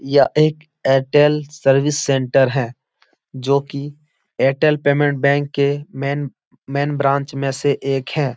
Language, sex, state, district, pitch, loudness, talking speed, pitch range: Hindi, male, Uttar Pradesh, Etah, 140 Hz, -18 LUFS, 135 wpm, 135-145 Hz